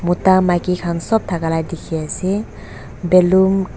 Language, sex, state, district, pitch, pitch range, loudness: Nagamese, female, Nagaland, Dimapur, 175 Hz, 165-190 Hz, -17 LUFS